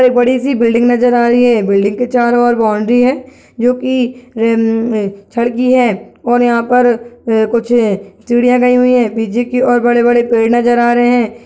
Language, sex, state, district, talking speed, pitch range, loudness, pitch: Hindi, female, Uttarakhand, Tehri Garhwal, 205 wpm, 230-245 Hz, -12 LUFS, 240 Hz